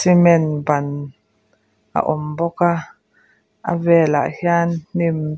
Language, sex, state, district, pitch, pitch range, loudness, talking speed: Mizo, female, Mizoram, Aizawl, 155 Hz, 145-170 Hz, -18 LUFS, 110 wpm